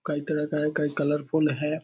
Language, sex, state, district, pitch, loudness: Hindi, male, Bihar, Purnia, 150 Hz, -26 LUFS